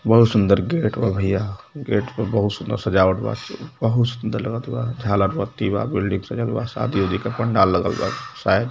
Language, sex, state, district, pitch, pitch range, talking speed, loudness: Hindi, male, Uttar Pradesh, Varanasi, 110 Hz, 95-120 Hz, 200 wpm, -21 LUFS